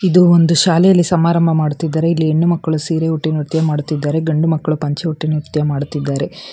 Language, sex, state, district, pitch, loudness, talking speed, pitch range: Kannada, female, Karnataka, Bangalore, 160 Hz, -15 LUFS, 165 wpm, 150-165 Hz